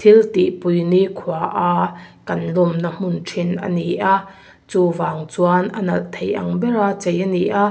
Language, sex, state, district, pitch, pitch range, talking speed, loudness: Mizo, female, Mizoram, Aizawl, 180 Hz, 175-195 Hz, 185 wpm, -19 LUFS